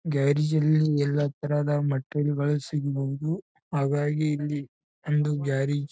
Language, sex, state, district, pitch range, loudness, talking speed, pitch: Kannada, male, Karnataka, Bijapur, 140-150 Hz, -26 LUFS, 110 wpm, 145 Hz